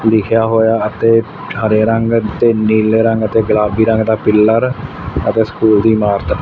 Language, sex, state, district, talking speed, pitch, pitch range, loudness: Punjabi, male, Punjab, Fazilka, 160 wpm, 110 Hz, 110-115 Hz, -13 LUFS